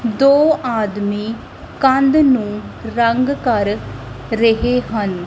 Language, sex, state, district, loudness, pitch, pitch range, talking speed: Punjabi, female, Punjab, Kapurthala, -16 LUFS, 230 Hz, 205-260 Hz, 90 wpm